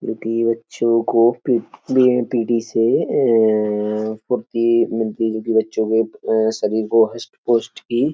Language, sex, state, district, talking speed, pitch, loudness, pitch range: Hindi, male, Uttar Pradesh, Etah, 145 wpm, 115 Hz, -18 LUFS, 110-115 Hz